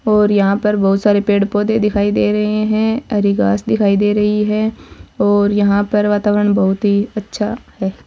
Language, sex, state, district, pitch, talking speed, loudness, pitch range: Marwari, female, Rajasthan, Churu, 205 Hz, 185 wpm, -15 LUFS, 200-210 Hz